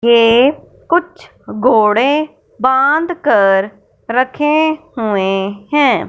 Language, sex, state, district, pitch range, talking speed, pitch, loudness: Hindi, male, Punjab, Fazilka, 210-300 Hz, 80 wpm, 255 Hz, -13 LUFS